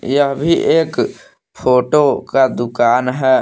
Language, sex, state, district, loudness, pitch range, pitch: Hindi, male, Jharkhand, Palamu, -15 LUFS, 125-145 Hz, 130 Hz